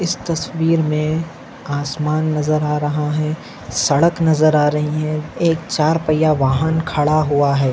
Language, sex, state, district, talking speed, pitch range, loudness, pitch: Hindi, male, Maharashtra, Nagpur, 155 wpm, 150-160 Hz, -17 LUFS, 155 Hz